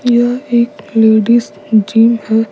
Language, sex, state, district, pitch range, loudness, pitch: Hindi, female, Bihar, Patna, 220-240 Hz, -12 LUFS, 225 Hz